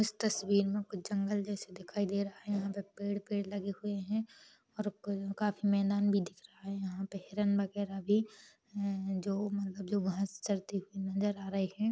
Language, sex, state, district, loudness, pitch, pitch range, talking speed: Hindi, female, Chhattisgarh, Rajnandgaon, -35 LUFS, 200 Hz, 195-205 Hz, 190 wpm